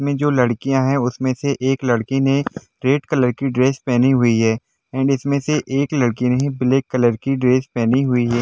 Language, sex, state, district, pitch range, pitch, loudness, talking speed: Hindi, male, Jharkhand, Sahebganj, 125-135 Hz, 130 Hz, -18 LUFS, 205 wpm